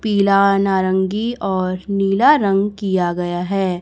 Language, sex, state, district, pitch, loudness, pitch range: Hindi, female, Chhattisgarh, Raipur, 195 Hz, -17 LUFS, 185-200 Hz